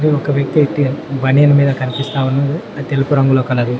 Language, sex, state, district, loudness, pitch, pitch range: Telugu, male, Telangana, Mahabubabad, -15 LUFS, 140 Hz, 135-145 Hz